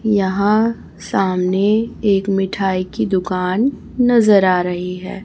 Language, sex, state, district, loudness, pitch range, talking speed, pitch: Hindi, female, Chhattisgarh, Raipur, -17 LUFS, 185-215 Hz, 115 wpm, 195 Hz